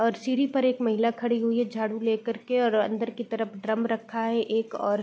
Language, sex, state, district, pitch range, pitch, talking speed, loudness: Hindi, female, Bihar, Gopalganj, 220-240 Hz, 230 Hz, 250 wpm, -27 LUFS